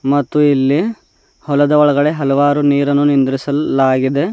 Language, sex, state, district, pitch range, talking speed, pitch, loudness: Kannada, male, Karnataka, Bidar, 135-145 Hz, 95 wpm, 145 Hz, -14 LUFS